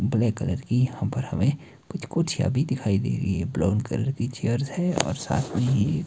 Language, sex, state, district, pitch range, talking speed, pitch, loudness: Hindi, male, Himachal Pradesh, Shimla, 115-145 Hz, 210 wpm, 130 Hz, -25 LUFS